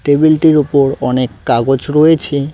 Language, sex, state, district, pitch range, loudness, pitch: Bengali, male, West Bengal, Cooch Behar, 135-155 Hz, -12 LUFS, 145 Hz